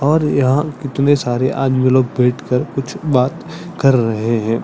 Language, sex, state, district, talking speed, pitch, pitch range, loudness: Hindi, male, Chhattisgarh, Sarguja, 170 wpm, 130 Hz, 125-145 Hz, -16 LUFS